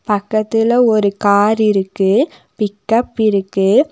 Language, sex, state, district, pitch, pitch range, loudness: Tamil, female, Tamil Nadu, Nilgiris, 210 Hz, 200-225 Hz, -15 LUFS